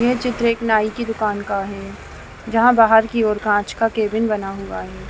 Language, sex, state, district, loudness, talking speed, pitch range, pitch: Hindi, female, Bihar, East Champaran, -18 LUFS, 225 wpm, 205-230 Hz, 220 Hz